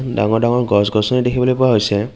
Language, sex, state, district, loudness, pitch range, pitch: Assamese, male, Assam, Kamrup Metropolitan, -15 LUFS, 105-125 Hz, 120 Hz